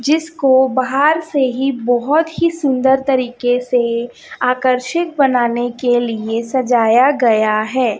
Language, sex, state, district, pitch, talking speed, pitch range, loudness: Hindi, female, Chhattisgarh, Raipur, 255 Hz, 120 wpm, 240-275 Hz, -15 LUFS